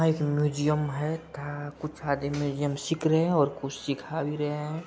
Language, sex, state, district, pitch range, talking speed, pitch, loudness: Hindi, male, Bihar, Araria, 145-155 Hz, 195 wpm, 150 Hz, -29 LUFS